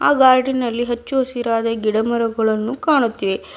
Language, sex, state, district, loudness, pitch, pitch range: Kannada, female, Karnataka, Bidar, -18 LUFS, 235 Hz, 225-260 Hz